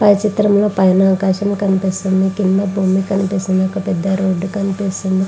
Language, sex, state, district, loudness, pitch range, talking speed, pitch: Telugu, female, Andhra Pradesh, Visakhapatnam, -16 LUFS, 190-195 Hz, 100 wpm, 195 Hz